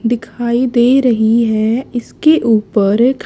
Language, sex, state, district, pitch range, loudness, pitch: Hindi, female, Haryana, Charkhi Dadri, 225-250 Hz, -13 LUFS, 235 Hz